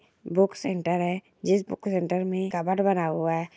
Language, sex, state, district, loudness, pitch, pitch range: Hindi, male, Bihar, Jamui, -26 LUFS, 185 Hz, 175-190 Hz